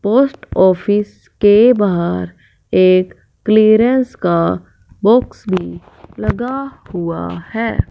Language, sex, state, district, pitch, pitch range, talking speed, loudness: Hindi, female, Punjab, Fazilka, 205 Hz, 170-230 Hz, 90 wpm, -15 LUFS